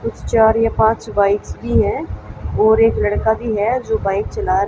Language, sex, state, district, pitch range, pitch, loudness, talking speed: Hindi, female, Haryana, Jhajjar, 205-225 Hz, 220 Hz, -17 LUFS, 205 wpm